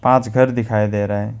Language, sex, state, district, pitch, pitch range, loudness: Hindi, male, West Bengal, Alipurduar, 115 Hz, 105-130 Hz, -18 LUFS